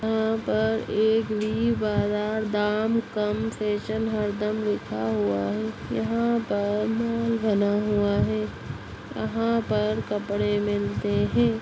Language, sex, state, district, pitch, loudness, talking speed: Hindi, female, Bihar, Begusarai, 210 Hz, -25 LUFS, 125 wpm